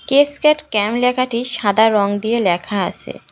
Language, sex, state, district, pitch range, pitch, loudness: Bengali, female, West Bengal, Cooch Behar, 205-255 Hz, 230 Hz, -16 LUFS